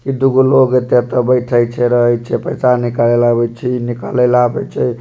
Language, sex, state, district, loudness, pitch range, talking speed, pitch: Maithili, male, Bihar, Supaul, -14 LUFS, 120-125 Hz, 215 wpm, 125 Hz